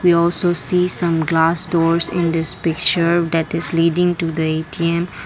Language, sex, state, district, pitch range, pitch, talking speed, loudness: English, female, Assam, Kamrup Metropolitan, 165-175 Hz, 170 Hz, 170 wpm, -16 LUFS